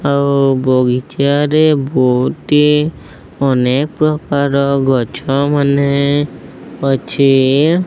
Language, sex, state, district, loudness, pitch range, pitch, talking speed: Odia, male, Odisha, Sambalpur, -13 LUFS, 135-145 Hz, 140 Hz, 60 wpm